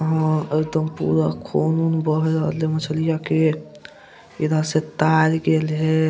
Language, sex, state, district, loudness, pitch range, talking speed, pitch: Hindi, male, Bihar, Madhepura, -21 LUFS, 155-160 Hz, 145 wpm, 155 Hz